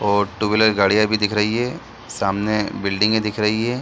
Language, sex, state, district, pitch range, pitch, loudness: Hindi, male, Bihar, Saran, 100-110 Hz, 105 Hz, -19 LUFS